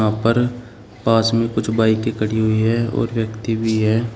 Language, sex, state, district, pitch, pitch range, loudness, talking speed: Hindi, male, Uttar Pradesh, Shamli, 110 Hz, 110-115 Hz, -19 LUFS, 190 wpm